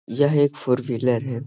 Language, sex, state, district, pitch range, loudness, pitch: Hindi, male, Bihar, Gaya, 120-145 Hz, -21 LUFS, 125 Hz